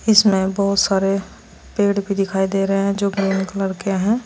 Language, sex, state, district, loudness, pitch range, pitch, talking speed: Hindi, female, Uttar Pradesh, Saharanpur, -19 LUFS, 195-200 Hz, 195 Hz, 195 wpm